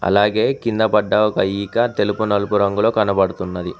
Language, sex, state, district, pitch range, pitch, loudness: Telugu, male, Telangana, Mahabubabad, 100-110 Hz, 105 Hz, -18 LUFS